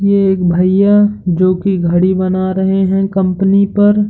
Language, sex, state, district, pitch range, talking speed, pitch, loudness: Hindi, male, Uttar Pradesh, Hamirpur, 185-200 Hz, 160 wpm, 190 Hz, -12 LUFS